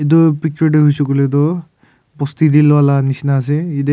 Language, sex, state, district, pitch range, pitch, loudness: Nagamese, male, Nagaland, Kohima, 140-160 Hz, 145 Hz, -13 LUFS